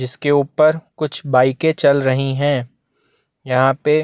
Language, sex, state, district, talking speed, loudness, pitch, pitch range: Hindi, male, Chhattisgarh, Bastar, 135 wpm, -17 LUFS, 140 Hz, 130-155 Hz